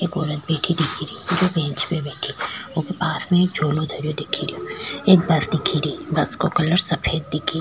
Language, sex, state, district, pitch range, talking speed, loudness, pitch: Rajasthani, female, Rajasthan, Churu, 155-180 Hz, 215 wpm, -21 LUFS, 160 Hz